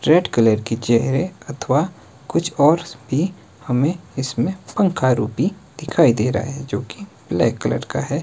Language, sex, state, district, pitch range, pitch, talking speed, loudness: Hindi, male, Himachal Pradesh, Shimla, 115-165 Hz, 135 Hz, 160 wpm, -20 LUFS